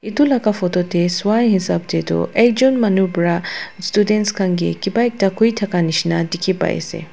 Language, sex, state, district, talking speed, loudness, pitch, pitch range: Nagamese, female, Nagaland, Dimapur, 185 wpm, -17 LUFS, 190 Hz, 170-215 Hz